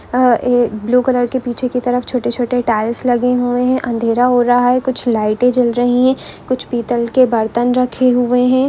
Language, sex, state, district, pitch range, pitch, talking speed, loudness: Hindi, female, Andhra Pradesh, Chittoor, 240-250 Hz, 245 Hz, 200 wpm, -15 LUFS